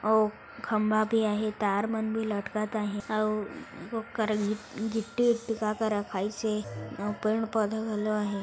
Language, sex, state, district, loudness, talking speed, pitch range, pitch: Chhattisgarhi, female, Chhattisgarh, Raigarh, -30 LUFS, 155 wpm, 210-220 Hz, 215 Hz